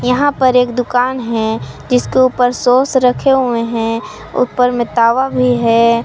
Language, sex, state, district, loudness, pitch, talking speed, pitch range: Hindi, female, Jharkhand, Palamu, -14 LUFS, 245 Hz, 160 wpm, 235-255 Hz